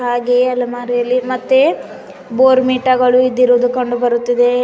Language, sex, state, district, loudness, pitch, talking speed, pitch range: Kannada, female, Karnataka, Bidar, -14 LUFS, 250 Hz, 105 wpm, 245-255 Hz